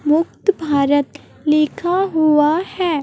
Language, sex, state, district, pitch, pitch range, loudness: Hindi, female, Chhattisgarh, Raipur, 310 Hz, 295-345 Hz, -17 LUFS